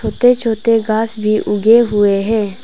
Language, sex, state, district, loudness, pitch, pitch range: Hindi, female, Arunachal Pradesh, Papum Pare, -14 LUFS, 220 Hz, 210-230 Hz